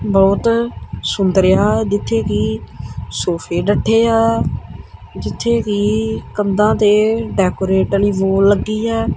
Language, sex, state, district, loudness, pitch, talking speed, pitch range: Punjabi, male, Punjab, Kapurthala, -16 LUFS, 200 Hz, 105 wpm, 185-220 Hz